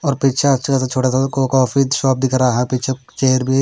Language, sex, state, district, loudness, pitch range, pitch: Hindi, male, Bihar, Patna, -16 LUFS, 130-135 Hz, 130 Hz